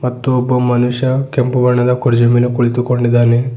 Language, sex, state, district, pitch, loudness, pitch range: Kannada, male, Karnataka, Bidar, 125 Hz, -14 LUFS, 120-125 Hz